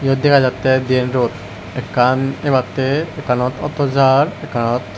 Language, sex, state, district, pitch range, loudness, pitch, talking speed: Chakma, male, Tripura, West Tripura, 125-140 Hz, -16 LUFS, 130 Hz, 130 wpm